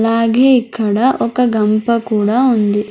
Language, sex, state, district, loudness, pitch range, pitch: Telugu, female, Andhra Pradesh, Sri Satya Sai, -13 LUFS, 215-245 Hz, 230 Hz